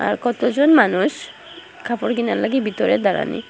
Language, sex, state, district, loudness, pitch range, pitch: Bengali, female, Assam, Hailakandi, -18 LUFS, 235-270 Hz, 240 Hz